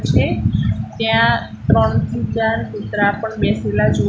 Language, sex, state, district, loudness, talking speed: Gujarati, female, Gujarat, Gandhinagar, -18 LUFS, 115 wpm